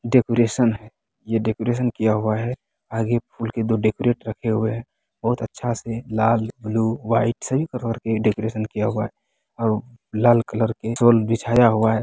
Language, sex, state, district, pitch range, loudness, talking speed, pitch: Hindi, male, Bihar, Begusarai, 110-120 Hz, -22 LUFS, 170 wpm, 115 Hz